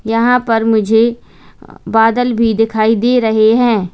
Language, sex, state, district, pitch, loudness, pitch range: Hindi, female, Uttar Pradesh, Lalitpur, 225 Hz, -12 LUFS, 220-235 Hz